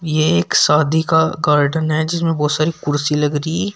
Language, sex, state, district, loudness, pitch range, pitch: Hindi, male, Uttar Pradesh, Shamli, -16 LUFS, 150-160 Hz, 155 Hz